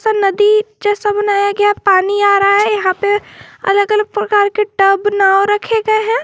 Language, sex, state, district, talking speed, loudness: Hindi, female, Jharkhand, Garhwa, 165 wpm, -13 LUFS